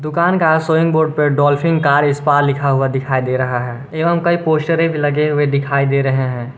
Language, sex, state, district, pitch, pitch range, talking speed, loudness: Hindi, male, Jharkhand, Garhwa, 145 Hz, 135-160 Hz, 210 wpm, -15 LUFS